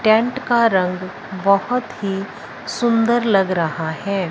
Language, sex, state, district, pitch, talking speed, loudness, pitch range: Hindi, female, Punjab, Fazilka, 200 Hz, 125 wpm, -19 LUFS, 185-235 Hz